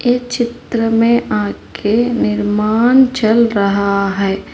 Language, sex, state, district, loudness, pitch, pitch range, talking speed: Hindi, female, Telangana, Hyderabad, -14 LUFS, 225 Hz, 200-240 Hz, 105 wpm